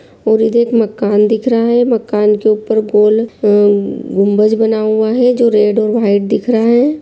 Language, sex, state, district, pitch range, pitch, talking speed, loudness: Hindi, female, Chhattisgarh, Rajnandgaon, 210-230 Hz, 220 Hz, 195 wpm, -12 LUFS